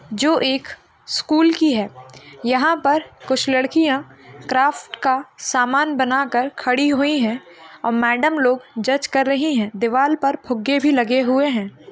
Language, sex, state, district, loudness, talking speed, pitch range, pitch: Hindi, female, Bihar, Madhepura, -19 LUFS, 155 wpm, 240-285 Hz, 265 Hz